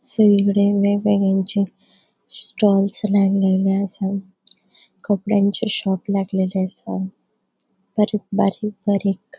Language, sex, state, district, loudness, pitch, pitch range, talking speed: Konkani, female, Goa, North and South Goa, -20 LUFS, 200 Hz, 195-205 Hz, 70 wpm